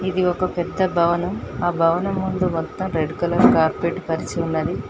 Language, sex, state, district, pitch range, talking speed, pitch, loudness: Telugu, female, Telangana, Mahabubabad, 170-185 Hz, 160 wpm, 180 Hz, -21 LUFS